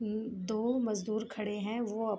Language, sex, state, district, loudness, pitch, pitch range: Hindi, female, Jharkhand, Sahebganj, -35 LUFS, 215 Hz, 210-225 Hz